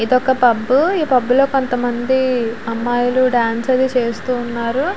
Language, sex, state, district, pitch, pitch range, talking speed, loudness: Telugu, female, Andhra Pradesh, Visakhapatnam, 250 Hz, 235-260 Hz, 145 wpm, -16 LUFS